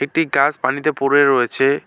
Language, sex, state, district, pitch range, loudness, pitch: Bengali, male, West Bengal, Alipurduar, 135-155 Hz, -16 LUFS, 140 Hz